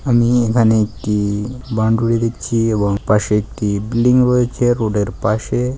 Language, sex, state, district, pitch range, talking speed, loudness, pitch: Bengali, male, West Bengal, Kolkata, 105-120 Hz, 125 wpm, -16 LUFS, 115 Hz